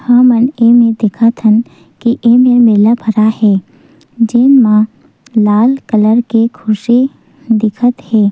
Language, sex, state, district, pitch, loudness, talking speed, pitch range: Chhattisgarhi, female, Chhattisgarh, Sukma, 230 Hz, -10 LUFS, 130 wpm, 215-245 Hz